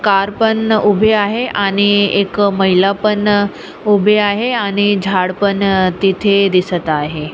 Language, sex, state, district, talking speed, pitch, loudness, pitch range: Marathi, female, Maharashtra, Sindhudurg, 130 wpm, 200 Hz, -14 LUFS, 195-210 Hz